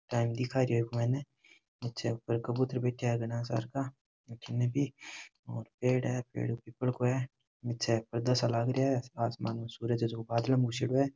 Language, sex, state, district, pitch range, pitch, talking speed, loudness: Rajasthani, male, Rajasthan, Churu, 115-130 Hz, 120 Hz, 170 wpm, -33 LUFS